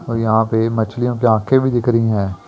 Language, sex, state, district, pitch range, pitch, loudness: Hindi, female, Chandigarh, Chandigarh, 110-120 Hz, 115 Hz, -16 LUFS